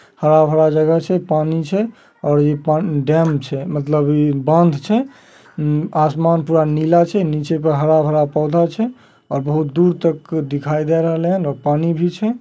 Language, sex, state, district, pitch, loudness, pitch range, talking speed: Magahi, male, Bihar, Samastipur, 155 Hz, -17 LUFS, 150-170 Hz, 165 wpm